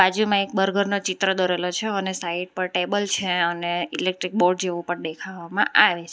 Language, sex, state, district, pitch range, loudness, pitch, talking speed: Gujarati, female, Gujarat, Valsad, 175-195 Hz, -23 LUFS, 185 Hz, 195 wpm